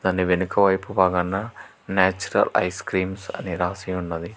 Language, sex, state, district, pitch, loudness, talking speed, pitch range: Telugu, male, Telangana, Hyderabad, 95 Hz, -23 LUFS, 135 wpm, 90-95 Hz